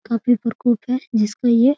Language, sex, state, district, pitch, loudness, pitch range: Hindi, female, Bihar, Muzaffarpur, 240 Hz, -19 LUFS, 230-250 Hz